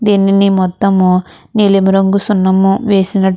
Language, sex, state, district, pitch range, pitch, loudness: Telugu, female, Andhra Pradesh, Krishna, 190-200 Hz, 195 Hz, -11 LUFS